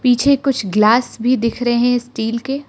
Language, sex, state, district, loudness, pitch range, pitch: Hindi, female, Arunachal Pradesh, Lower Dibang Valley, -16 LUFS, 230-255 Hz, 245 Hz